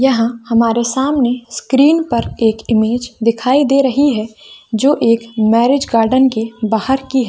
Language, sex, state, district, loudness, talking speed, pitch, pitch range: Hindi, female, Chhattisgarh, Bilaspur, -14 LUFS, 155 wpm, 235 Hz, 225-265 Hz